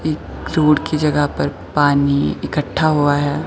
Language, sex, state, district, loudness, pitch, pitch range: Hindi, female, Himachal Pradesh, Shimla, -17 LUFS, 145 Hz, 145-155 Hz